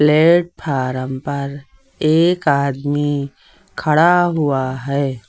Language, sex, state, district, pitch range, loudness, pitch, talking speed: Hindi, male, Uttar Pradesh, Lucknow, 135-155 Hz, -17 LUFS, 145 Hz, 80 wpm